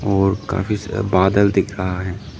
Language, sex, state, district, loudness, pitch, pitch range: Hindi, male, Arunachal Pradesh, Lower Dibang Valley, -19 LUFS, 95 Hz, 95-100 Hz